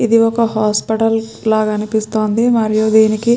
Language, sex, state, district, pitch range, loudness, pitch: Telugu, female, Andhra Pradesh, Chittoor, 215-225 Hz, -15 LUFS, 220 Hz